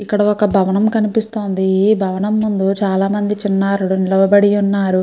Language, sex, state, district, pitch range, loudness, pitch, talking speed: Telugu, female, Andhra Pradesh, Srikakulam, 195-210 Hz, -15 LUFS, 200 Hz, 130 wpm